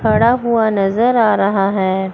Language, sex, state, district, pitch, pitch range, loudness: Hindi, female, Chandigarh, Chandigarh, 215 Hz, 195-230 Hz, -14 LUFS